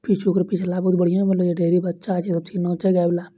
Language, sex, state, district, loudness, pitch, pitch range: Angika, male, Bihar, Bhagalpur, -21 LUFS, 180 Hz, 175-185 Hz